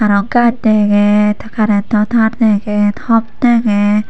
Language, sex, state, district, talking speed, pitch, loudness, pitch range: Chakma, female, Tripura, Unakoti, 105 wpm, 210 Hz, -13 LUFS, 205-225 Hz